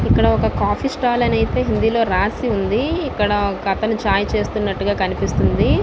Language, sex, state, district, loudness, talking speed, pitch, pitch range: Telugu, female, Andhra Pradesh, Visakhapatnam, -18 LUFS, 165 wpm, 215 Hz, 200-240 Hz